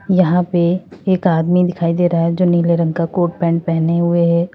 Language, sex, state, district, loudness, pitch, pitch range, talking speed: Hindi, female, Uttar Pradesh, Lalitpur, -16 LUFS, 170 Hz, 170-180 Hz, 225 wpm